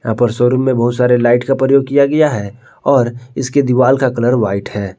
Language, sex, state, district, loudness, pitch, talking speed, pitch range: Hindi, male, Jharkhand, Palamu, -13 LUFS, 125 Hz, 230 wpm, 120-135 Hz